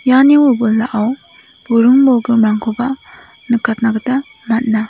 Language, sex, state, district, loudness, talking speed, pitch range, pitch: Garo, female, Meghalaya, South Garo Hills, -13 LUFS, 85 wpm, 225-260 Hz, 235 Hz